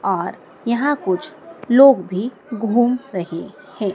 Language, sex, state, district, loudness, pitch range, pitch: Hindi, female, Madhya Pradesh, Dhar, -18 LUFS, 195-270 Hz, 235 Hz